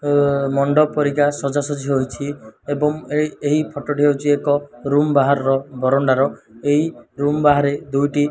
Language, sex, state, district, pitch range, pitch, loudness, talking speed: Odia, male, Odisha, Malkangiri, 140-145 Hz, 145 Hz, -19 LUFS, 135 wpm